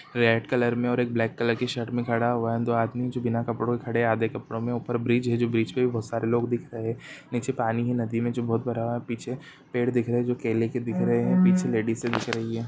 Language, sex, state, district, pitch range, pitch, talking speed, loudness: Hindi, male, Jharkhand, Jamtara, 115-120 Hz, 120 Hz, 305 wpm, -26 LUFS